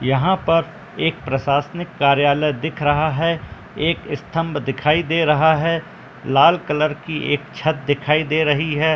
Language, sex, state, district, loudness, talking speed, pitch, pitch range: Hindi, male, Uttar Pradesh, Muzaffarnagar, -19 LUFS, 155 wpm, 155 Hz, 145-165 Hz